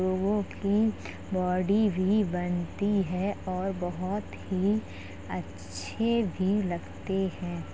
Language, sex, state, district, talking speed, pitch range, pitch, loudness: Hindi, male, Uttar Pradesh, Jalaun, 100 wpm, 175-205 Hz, 185 Hz, -29 LUFS